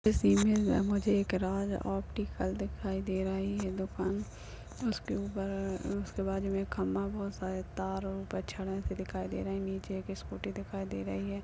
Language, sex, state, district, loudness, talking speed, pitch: Hindi, male, Maharashtra, Chandrapur, -34 LUFS, 170 wpm, 190 Hz